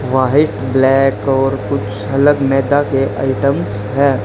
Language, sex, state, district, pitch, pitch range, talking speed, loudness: Hindi, male, Haryana, Charkhi Dadri, 135 Hz, 130-140 Hz, 125 wpm, -14 LUFS